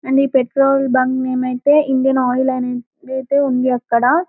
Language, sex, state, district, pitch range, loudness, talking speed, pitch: Telugu, female, Telangana, Karimnagar, 255-275 Hz, -16 LUFS, 180 wpm, 265 Hz